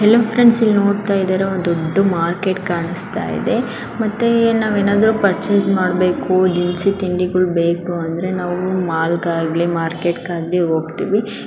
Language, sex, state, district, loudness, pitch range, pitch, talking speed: Kannada, female, Karnataka, Dharwad, -17 LUFS, 175-205 Hz, 185 Hz, 110 wpm